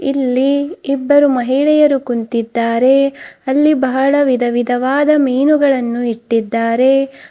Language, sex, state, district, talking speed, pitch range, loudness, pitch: Kannada, female, Karnataka, Bidar, 75 wpm, 240-280 Hz, -14 LUFS, 265 Hz